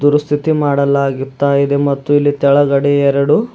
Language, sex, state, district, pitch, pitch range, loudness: Kannada, male, Karnataka, Bidar, 140 Hz, 140-145 Hz, -13 LUFS